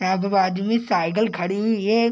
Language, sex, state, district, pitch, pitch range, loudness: Hindi, male, Bihar, Gopalganj, 200 Hz, 190-220 Hz, -21 LUFS